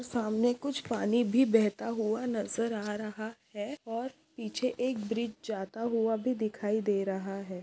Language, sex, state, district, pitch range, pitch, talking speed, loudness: Hindi, female, Maharashtra, Nagpur, 215-240 Hz, 225 Hz, 165 wpm, -32 LUFS